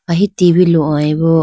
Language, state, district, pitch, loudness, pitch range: Idu Mishmi, Arunachal Pradesh, Lower Dibang Valley, 165 Hz, -12 LUFS, 160-180 Hz